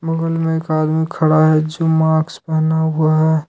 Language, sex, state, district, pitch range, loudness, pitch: Hindi, male, Jharkhand, Ranchi, 155-160 Hz, -16 LUFS, 160 Hz